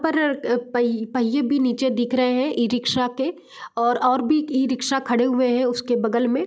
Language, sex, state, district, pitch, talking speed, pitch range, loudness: Hindi, female, Bihar, Gopalganj, 255 Hz, 185 wpm, 240-265 Hz, -21 LUFS